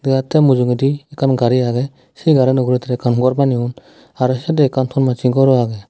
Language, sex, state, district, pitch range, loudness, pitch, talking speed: Chakma, male, Tripura, Dhalai, 125-135 Hz, -16 LUFS, 130 Hz, 205 wpm